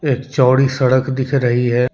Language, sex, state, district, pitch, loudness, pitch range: Hindi, male, Jharkhand, Deoghar, 130 Hz, -15 LUFS, 125-135 Hz